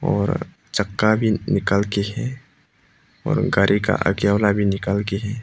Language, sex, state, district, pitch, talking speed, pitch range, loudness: Hindi, male, Arunachal Pradesh, Papum Pare, 100 Hz, 165 wpm, 100-110 Hz, -20 LUFS